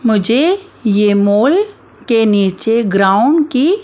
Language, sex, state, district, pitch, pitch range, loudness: Hindi, female, Maharashtra, Mumbai Suburban, 225 Hz, 205-315 Hz, -13 LUFS